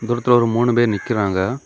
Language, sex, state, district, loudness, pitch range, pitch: Tamil, male, Tamil Nadu, Kanyakumari, -17 LUFS, 105-120 Hz, 120 Hz